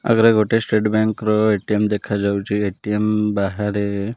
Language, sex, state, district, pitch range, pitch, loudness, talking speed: Odia, male, Odisha, Malkangiri, 105-110 Hz, 105 Hz, -19 LUFS, 145 wpm